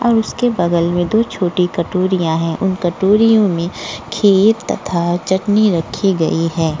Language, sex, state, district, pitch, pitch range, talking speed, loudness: Hindi, female, Uttar Pradesh, Budaun, 185 Hz, 170-210 Hz, 150 wpm, -15 LUFS